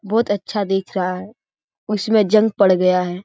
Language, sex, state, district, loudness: Hindi, male, Bihar, Jahanabad, -18 LUFS